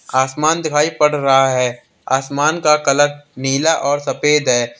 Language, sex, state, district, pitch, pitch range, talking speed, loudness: Hindi, male, Uttar Pradesh, Lalitpur, 145 Hz, 135-150 Hz, 150 wpm, -16 LUFS